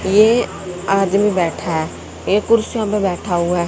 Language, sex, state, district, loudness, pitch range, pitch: Hindi, female, Haryana, Jhajjar, -17 LUFS, 175-210 Hz, 195 Hz